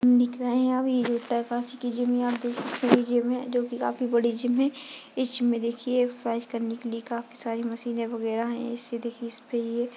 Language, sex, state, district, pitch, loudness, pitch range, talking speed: Hindi, female, Uttarakhand, Uttarkashi, 240 Hz, -27 LUFS, 235-250 Hz, 235 wpm